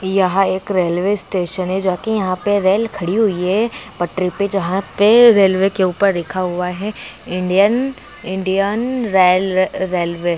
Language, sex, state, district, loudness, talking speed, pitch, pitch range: Hindi, male, Bihar, Kishanganj, -16 LUFS, 160 wpm, 190 Hz, 180-205 Hz